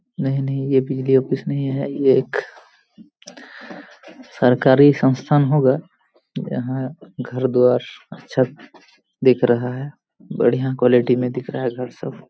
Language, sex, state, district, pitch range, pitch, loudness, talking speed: Hindi, male, Jharkhand, Jamtara, 125-135 Hz, 130 Hz, -19 LUFS, 125 wpm